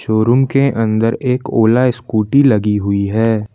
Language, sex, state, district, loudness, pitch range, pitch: Hindi, male, Jharkhand, Palamu, -14 LUFS, 110-125 Hz, 115 Hz